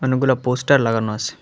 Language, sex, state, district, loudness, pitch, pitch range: Bengali, male, Tripura, West Tripura, -18 LUFS, 125 Hz, 110-130 Hz